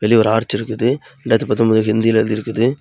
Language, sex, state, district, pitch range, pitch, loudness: Tamil, male, Tamil Nadu, Kanyakumari, 110-115 Hz, 115 Hz, -17 LUFS